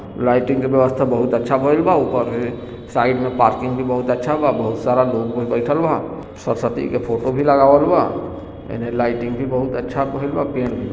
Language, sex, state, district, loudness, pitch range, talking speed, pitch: Bhojpuri, male, Bihar, East Champaran, -18 LUFS, 120-135 Hz, 200 wpm, 125 Hz